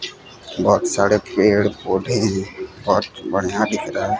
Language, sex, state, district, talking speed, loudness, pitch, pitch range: Hindi, male, Odisha, Sambalpur, 115 wpm, -19 LUFS, 105 Hz, 95-120 Hz